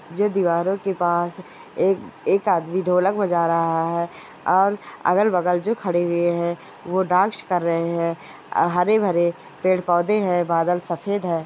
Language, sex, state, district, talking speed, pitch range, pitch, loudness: Hindi, female, Goa, North and South Goa, 170 wpm, 170-190 Hz, 180 Hz, -21 LUFS